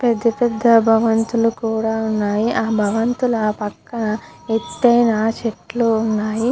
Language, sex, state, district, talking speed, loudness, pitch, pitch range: Telugu, female, Andhra Pradesh, Guntur, 100 wpm, -18 LUFS, 225 Hz, 215-230 Hz